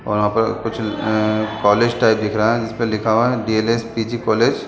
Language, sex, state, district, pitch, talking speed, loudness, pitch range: Hindi, male, Chhattisgarh, Bilaspur, 110 Hz, 245 wpm, -18 LUFS, 110-115 Hz